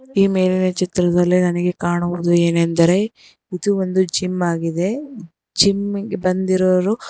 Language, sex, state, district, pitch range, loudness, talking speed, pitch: Kannada, female, Karnataka, Bangalore, 175-195 Hz, -18 LUFS, 110 wpm, 185 Hz